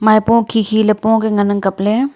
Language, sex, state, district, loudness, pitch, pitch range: Wancho, female, Arunachal Pradesh, Longding, -14 LUFS, 215 Hz, 205-225 Hz